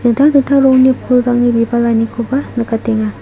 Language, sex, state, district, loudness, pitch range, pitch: Garo, female, Meghalaya, South Garo Hills, -12 LUFS, 230-260 Hz, 240 Hz